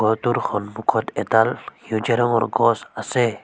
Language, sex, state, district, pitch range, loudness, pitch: Assamese, female, Assam, Sonitpur, 110-120 Hz, -21 LUFS, 115 Hz